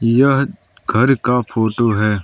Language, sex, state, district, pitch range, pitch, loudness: Hindi, male, Arunachal Pradesh, Lower Dibang Valley, 110-130 Hz, 120 Hz, -16 LUFS